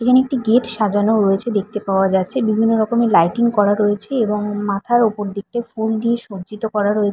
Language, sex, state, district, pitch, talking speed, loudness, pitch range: Bengali, female, West Bengal, Paschim Medinipur, 215 Hz, 185 wpm, -18 LUFS, 205-235 Hz